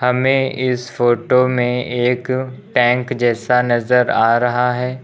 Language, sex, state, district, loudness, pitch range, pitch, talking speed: Hindi, male, Uttar Pradesh, Lucknow, -16 LUFS, 120-125 Hz, 125 Hz, 130 wpm